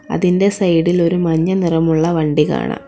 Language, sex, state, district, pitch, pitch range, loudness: Malayalam, female, Kerala, Kollam, 170 Hz, 165-185 Hz, -15 LUFS